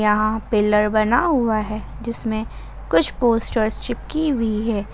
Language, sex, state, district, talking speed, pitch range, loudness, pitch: Hindi, female, Jharkhand, Ranchi, 135 wpm, 215-235 Hz, -20 LUFS, 220 Hz